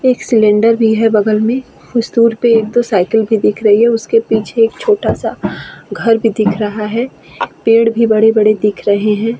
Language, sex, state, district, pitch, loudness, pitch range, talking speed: Hindi, female, Bihar, Vaishali, 225 Hz, -13 LUFS, 215-230 Hz, 205 wpm